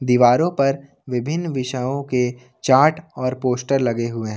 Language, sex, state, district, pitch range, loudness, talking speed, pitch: Hindi, male, Jharkhand, Ranchi, 125-140 Hz, -20 LUFS, 150 wpm, 130 Hz